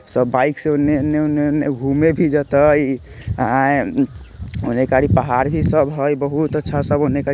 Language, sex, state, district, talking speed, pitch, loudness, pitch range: Bajjika, male, Bihar, Vaishali, 180 wpm, 140 Hz, -17 LUFS, 130-150 Hz